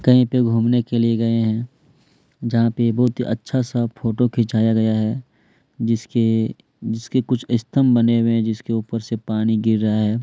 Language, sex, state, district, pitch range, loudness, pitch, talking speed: Hindi, male, Chhattisgarh, Kabirdham, 110-125 Hz, -20 LUFS, 115 Hz, 180 wpm